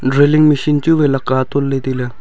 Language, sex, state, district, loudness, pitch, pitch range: Wancho, male, Arunachal Pradesh, Longding, -14 LUFS, 135 Hz, 130-150 Hz